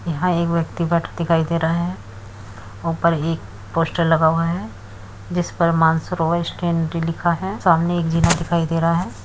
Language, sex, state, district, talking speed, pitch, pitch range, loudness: Hindi, female, Uttar Pradesh, Muzaffarnagar, 175 wpm, 165 Hz, 160-170 Hz, -20 LUFS